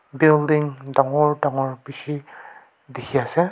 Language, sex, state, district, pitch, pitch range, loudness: Nagamese, male, Nagaland, Kohima, 140 Hz, 135-150 Hz, -21 LUFS